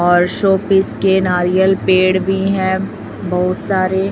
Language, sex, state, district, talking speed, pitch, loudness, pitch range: Hindi, female, Chhattisgarh, Raipur, 130 wpm, 190 Hz, -15 LUFS, 185-195 Hz